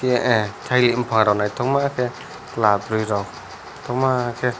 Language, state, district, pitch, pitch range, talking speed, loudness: Kokborok, Tripura, West Tripura, 120 Hz, 105-125 Hz, 155 wpm, -20 LUFS